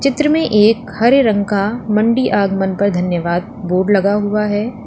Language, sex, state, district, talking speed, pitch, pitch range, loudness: Hindi, female, Uttar Pradesh, Lalitpur, 175 wpm, 210 Hz, 200-230 Hz, -15 LUFS